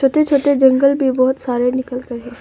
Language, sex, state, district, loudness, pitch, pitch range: Hindi, female, Arunachal Pradesh, Longding, -15 LUFS, 260 Hz, 250-275 Hz